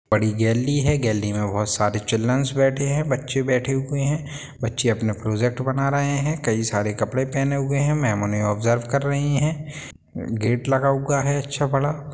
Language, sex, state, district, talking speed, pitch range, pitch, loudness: Hindi, male, Bihar, Sitamarhi, 185 wpm, 110-140 Hz, 135 Hz, -22 LUFS